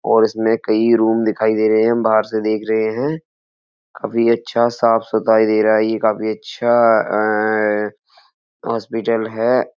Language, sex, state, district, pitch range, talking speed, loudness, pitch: Hindi, male, Uttar Pradesh, Etah, 110-115 Hz, 165 wpm, -17 LUFS, 110 Hz